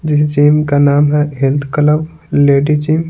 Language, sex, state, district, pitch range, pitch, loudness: Hindi, male, Bihar, Patna, 145-150 Hz, 150 Hz, -12 LUFS